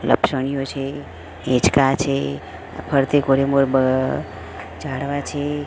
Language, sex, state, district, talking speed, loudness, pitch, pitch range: Gujarati, female, Gujarat, Gandhinagar, 75 wpm, -20 LUFS, 135 Hz, 130-140 Hz